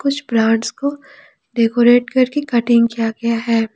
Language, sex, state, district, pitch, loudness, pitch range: Hindi, female, Jharkhand, Ranchi, 235 Hz, -16 LUFS, 230-275 Hz